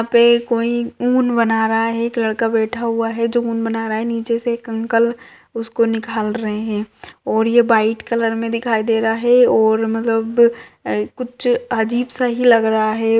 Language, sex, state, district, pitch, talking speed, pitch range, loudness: Hindi, female, Maharashtra, Solapur, 230 Hz, 200 wpm, 225-235 Hz, -17 LUFS